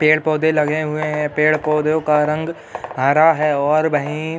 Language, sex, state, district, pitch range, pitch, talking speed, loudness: Hindi, male, Uttar Pradesh, Hamirpur, 150-155 Hz, 155 Hz, 190 wpm, -17 LUFS